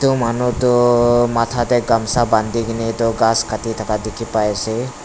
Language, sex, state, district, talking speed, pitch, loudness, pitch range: Nagamese, male, Nagaland, Dimapur, 165 wpm, 115 Hz, -17 LUFS, 110-120 Hz